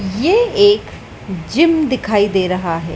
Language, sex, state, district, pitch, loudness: Hindi, female, Madhya Pradesh, Dhar, 210 Hz, -15 LUFS